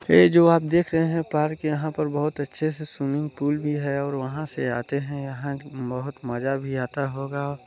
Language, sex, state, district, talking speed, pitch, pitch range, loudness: Hindi, male, Chhattisgarh, Balrampur, 210 wpm, 145 Hz, 135-155 Hz, -25 LUFS